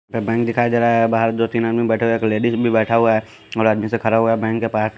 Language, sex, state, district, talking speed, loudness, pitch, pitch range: Hindi, male, Delhi, New Delhi, 315 wpm, -18 LUFS, 115 Hz, 110-115 Hz